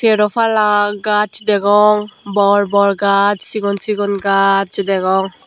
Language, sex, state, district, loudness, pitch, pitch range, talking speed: Chakma, male, Tripura, Unakoti, -14 LUFS, 205 Hz, 200-210 Hz, 110 wpm